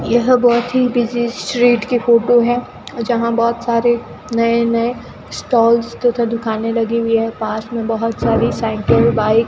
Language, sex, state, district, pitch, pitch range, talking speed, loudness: Hindi, female, Rajasthan, Bikaner, 235 Hz, 225-240 Hz, 165 wpm, -16 LUFS